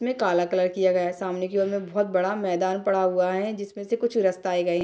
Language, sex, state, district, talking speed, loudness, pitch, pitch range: Hindi, female, Bihar, Darbhanga, 270 wpm, -25 LUFS, 190 Hz, 185-200 Hz